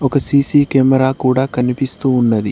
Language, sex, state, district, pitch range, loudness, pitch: Telugu, male, Telangana, Mahabubabad, 125-140 Hz, -14 LUFS, 130 Hz